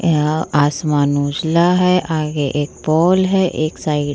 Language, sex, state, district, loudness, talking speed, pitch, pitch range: Hindi, female, Bihar, Vaishali, -16 LUFS, 190 wpm, 155 Hz, 145-170 Hz